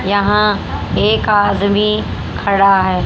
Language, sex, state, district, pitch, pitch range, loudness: Hindi, female, Haryana, Rohtak, 200 Hz, 195-210 Hz, -14 LUFS